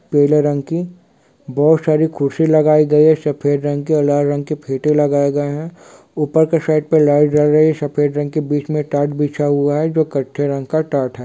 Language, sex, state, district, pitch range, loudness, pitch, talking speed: Hindi, male, Bihar, Sitamarhi, 145-155 Hz, -16 LUFS, 150 Hz, 230 wpm